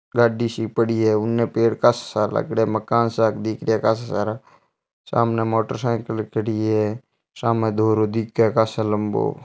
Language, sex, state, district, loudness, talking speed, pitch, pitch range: Marwari, male, Rajasthan, Churu, -21 LUFS, 160 wpm, 110 Hz, 110-115 Hz